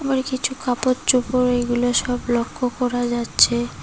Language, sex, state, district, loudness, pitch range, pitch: Bengali, female, West Bengal, Cooch Behar, -20 LUFS, 240-255 Hz, 245 Hz